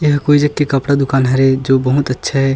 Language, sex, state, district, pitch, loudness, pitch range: Chhattisgarhi, male, Chhattisgarh, Sukma, 135 Hz, -14 LUFS, 135-145 Hz